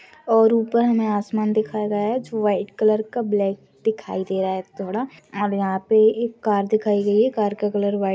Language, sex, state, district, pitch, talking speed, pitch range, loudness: Hindi, female, Goa, North and South Goa, 215 Hz, 220 wpm, 200-220 Hz, -21 LUFS